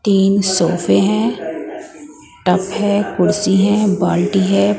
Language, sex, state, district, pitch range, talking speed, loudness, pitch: Hindi, female, Punjab, Pathankot, 190-215 Hz, 115 wpm, -15 LUFS, 200 Hz